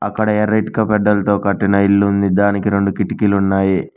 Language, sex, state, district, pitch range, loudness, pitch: Telugu, male, Telangana, Mahabubabad, 100-105 Hz, -15 LUFS, 100 Hz